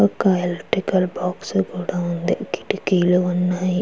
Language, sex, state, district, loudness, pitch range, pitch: Telugu, female, Andhra Pradesh, Chittoor, -21 LUFS, 175-185 Hz, 180 Hz